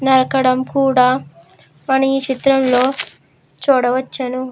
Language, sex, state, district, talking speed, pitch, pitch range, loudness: Telugu, female, Andhra Pradesh, Krishna, 80 wpm, 260 Hz, 250-265 Hz, -16 LUFS